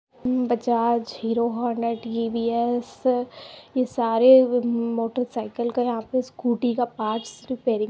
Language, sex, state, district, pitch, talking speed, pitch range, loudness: Hindi, female, Bihar, Muzaffarpur, 235 Hz, 115 wpm, 230-250 Hz, -23 LUFS